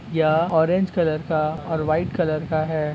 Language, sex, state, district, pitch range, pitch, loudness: Hindi, male, Andhra Pradesh, Anantapur, 155-170 Hz, 160 Hz, -22 LUFS